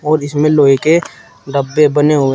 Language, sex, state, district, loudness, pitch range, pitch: Hindi, male, Uttar Pradesh, Shamli, -12 LUFS, 140-150 Hz, 145 Hz